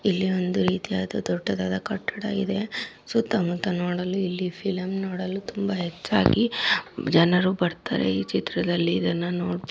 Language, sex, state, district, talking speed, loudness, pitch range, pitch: Kannada, female, Karnataka, Dharwad, 115 wpm, -25 LUFS, 175-200 Hz, 180 Hz